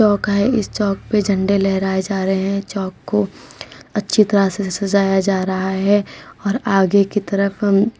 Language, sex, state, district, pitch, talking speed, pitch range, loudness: Hindi, female, Uttar Pradesh, Budaun, 200 Hz, 190 wpm, 190-205 Hz, -18 LUFS